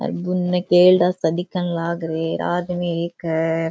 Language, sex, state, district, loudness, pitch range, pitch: Rajasthani, female, Rajasthan, Churu, -20 LUFS, 165-180 Hz, 175 Hz